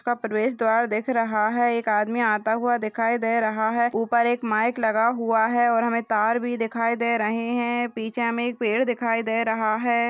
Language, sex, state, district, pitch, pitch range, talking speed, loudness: Hindi, female, Bihar, Purnia, 230 Hz, 220-240 Hz, 215 wpm, -23 LUFS